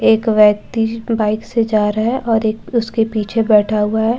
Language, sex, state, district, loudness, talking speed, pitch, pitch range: Hindi, female, Bihar, Katihar, -16 LUFS, 215 wpm, 220 Hz, 215-230 Hz